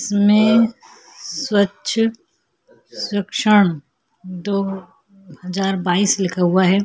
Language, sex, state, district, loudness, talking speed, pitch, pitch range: Hindi, female, Chhattisgarh, Korba, -18 LUFS, 80 wpm, 200 Hz, 185-215 Hz